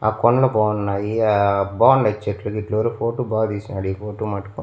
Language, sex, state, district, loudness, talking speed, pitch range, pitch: Telugu, male, Andhra Pradesh, Annamaya, -20 LUFS, 180 wpm, 100-110 Hz, 105 Hz